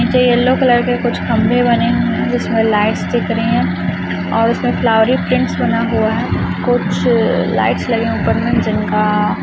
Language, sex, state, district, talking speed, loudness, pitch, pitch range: Hindi, female, Chhattisgarh, Raipur, 170 wpm, -15 LUFS, 225 Hz, 210-235 Hz